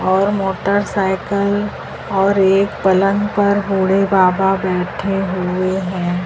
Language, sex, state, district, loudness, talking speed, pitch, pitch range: Hindi, male, Madhya Pradesh, Dhar, -16 LUFS, 105 wpm, 195 Hz, 185-200 Hz